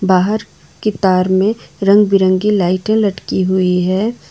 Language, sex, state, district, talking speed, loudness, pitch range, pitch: Hindi, female, Jharkhand, Ranchi, 140 wpm, -14 LUFS, 185-210 Hz, 195 Hz